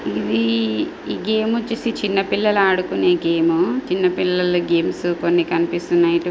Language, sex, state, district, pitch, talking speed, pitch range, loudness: Telugu, female, Andhra Pradesh, Srikakulam, 180 Hz, 125 wpm, 170-220 Hz, -19 LUFS